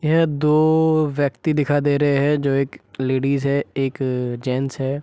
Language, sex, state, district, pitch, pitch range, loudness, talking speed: Hindi, male, Bihar, East Champaran, 140 Hz, 135-150 Hz, -20 LUFS, 165 wpm